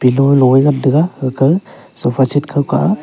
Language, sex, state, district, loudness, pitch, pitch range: Wancho, male, Arunachal Pradesh, Longding, -13 LUFS, 140 Hz, 130-150 Hz